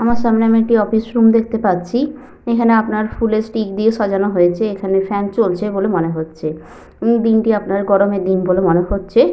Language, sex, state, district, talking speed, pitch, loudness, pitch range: Bengali, female, Jharkhand, Sahebganj, 185 wpm, 210 Hz, -16 LUFS, 195-225 Hz